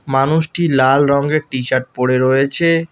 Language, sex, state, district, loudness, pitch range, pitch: Bengali, male, West Bengal, Alipurduar, -15 LUFS, 130-155 Hz, 140 Hz